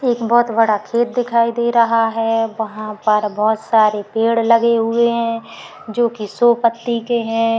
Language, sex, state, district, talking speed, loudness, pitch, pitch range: Hindi, female, Uttar Pradesh, Muzaffarnagar, 175 wpm, -16 LUFS, 230 Hz, 220-235 Hz